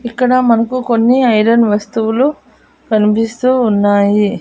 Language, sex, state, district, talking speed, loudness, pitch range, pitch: Telugu, female, Andhra Pradesh, Annamaya, 95 wpm, -12 LUFS, 215-250 Hz, 230 Hz